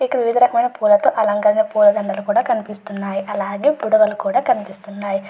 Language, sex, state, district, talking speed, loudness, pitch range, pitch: Telugu, female, Andhra Pradesh, Chittoor, 135 wpm, -17 LUFS, 205-260 Hz, 210 Hz